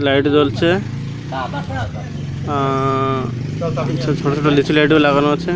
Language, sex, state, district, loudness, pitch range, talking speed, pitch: Bengali, male, Odisha, Malkangiri, -17 LUFS, 135-150 Hz, 130 wpm, 140 Hz